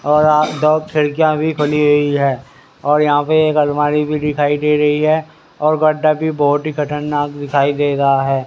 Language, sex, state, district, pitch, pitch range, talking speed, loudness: Hindi, male, Haryana, Rohtak, 150 Hz, 145-155 Hz, 200 wpm, -15 LUFS